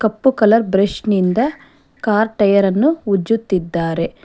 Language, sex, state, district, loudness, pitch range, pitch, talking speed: Kannada, female, Karnataka, Bangalore, -16 LUFS, 195-240 Hz, 215 Hz, 100 wpm